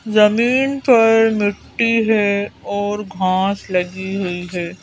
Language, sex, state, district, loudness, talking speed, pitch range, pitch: Hindi, female, Madhya Pradesh, Bhopal, -17 LUFS, 110 wpm, 190-225 Hz, 205 Hz